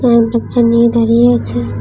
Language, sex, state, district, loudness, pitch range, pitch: Bengali, female, Tripura, West Tripura, -12 LUFS, 145-235 Hz, 235 Hz